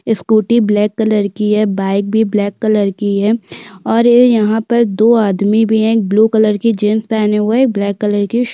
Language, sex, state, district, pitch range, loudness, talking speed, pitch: Hindi, female, Chhattisgarh, Korba, 205-225 Hz, -13 LUFS, 220 wpm, 215 Hz